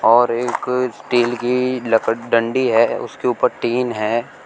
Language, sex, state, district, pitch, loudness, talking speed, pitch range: Hindi, male, Uttar Pradesh, Shamli, 120 Hz, -18 LUFS, 145 wpm, 115-125 Hz